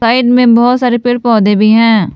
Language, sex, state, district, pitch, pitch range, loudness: Hindi, female, Jharkhand, Palamu, 235 Hz, 220-245 Hz, -9 LUFS